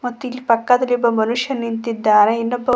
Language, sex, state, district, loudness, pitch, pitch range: Kannada, female, Karnataka, Koppal, -17 LUFS, 235 Hz, 230-250 Hz